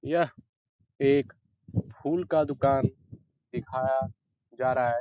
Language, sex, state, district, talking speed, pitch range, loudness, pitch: Hindi, male, Bihar, Jahanabad, 110 wpm, 120-140 Hz, -28 LUFS, 130 Hz